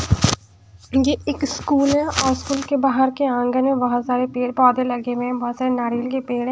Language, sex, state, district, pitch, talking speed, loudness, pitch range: Hindi, female, Punjab, Pathankot, 255 Hz, 195 wpm, -20 LUFS, 245-270 Hz